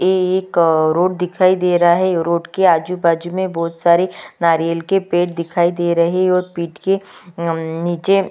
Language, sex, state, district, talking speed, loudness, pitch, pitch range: Hindi, female, Chhattisgarh, Kabirdham, 175 wpm, -16 LUFS, 175 Hz, 170-185 Hz